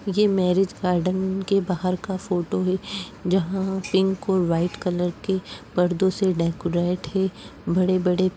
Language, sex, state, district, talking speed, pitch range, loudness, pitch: Hindi, female, Uttar Pradesh, Jyotiba Phule Nagar, 150 wpm, 180-190 Hz, -23 LUFS, 185 Hz